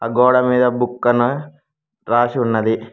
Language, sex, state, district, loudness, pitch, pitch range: Telugu, male, Telangana, Mahabubabad, -16 LUFS, 125 Hz, 120-130 Hz